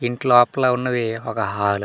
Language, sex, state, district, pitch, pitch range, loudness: Telugu, male, Andhra Pradesh, Manyam, 120 Hz, 110-125 Hz, -19 LUFS